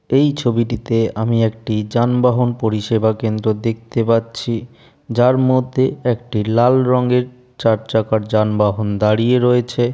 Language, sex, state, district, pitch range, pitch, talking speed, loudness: Bengali, male, West Bengal, Jalpaiguri, 110-125 Hz, 115 Hz, 115 wpm, -17 LUFS